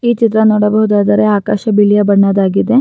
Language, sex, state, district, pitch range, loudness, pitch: Kannada, female, Karnataka, Raichur, 205-220 Hz, -11 LUFS, 210 Hz